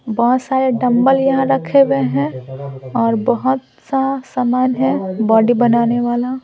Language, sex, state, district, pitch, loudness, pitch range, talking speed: Hindi, female, Bihar, Patna, 245 Hz, -16 LUFS, 225-265 Hz, 140 wpm